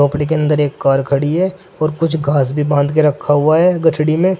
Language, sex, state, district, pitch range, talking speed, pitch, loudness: Hindi, male, Uttar Pradesh, Saharanpur, 145-160 Hz, 245 wpm, 150 Hz, -15 LUFS